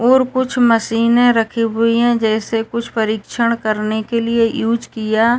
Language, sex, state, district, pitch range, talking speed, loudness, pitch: Hindi, male, Uttar Pradesh, Etah, 220-235 Hz, 165 wpm, -16 LUFS, 230 Hz